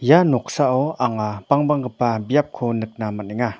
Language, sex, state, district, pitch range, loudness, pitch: Garo, male, Meghalaya, North Garo Hills, 110-145 Hz, -20 LUFS, 125 Hz